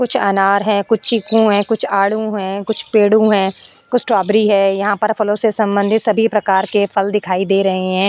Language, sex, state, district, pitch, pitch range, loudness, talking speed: Hindi, female, Maharashtra, Aurangabad, 205 Hz, 195-220 Hz, -15 LUFS, 210 wpm